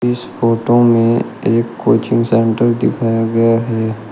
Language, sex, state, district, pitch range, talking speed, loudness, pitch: Hindi, male, Uttar Pradesh, Shamli, 115-120 Hz, 130 wpm, -14 LUFS, 115 Hz